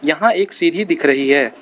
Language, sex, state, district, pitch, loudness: Hindi, male, Arunachal Pradesh, Lower Dibang Valley, 155 Hz, -15 LUFS